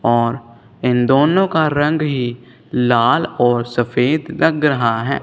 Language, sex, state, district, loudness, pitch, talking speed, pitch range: Hindi, male, Punjab, Kapurthala, -16 LUFS, 125 Hz, 140 wpm, 120-150 Hz